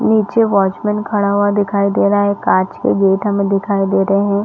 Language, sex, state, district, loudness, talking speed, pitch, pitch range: Hindi, female, Chhattisgarh, Rajnandgaon, -15 LUFS, 215 wpm, 200 Hz, 195-205 Hz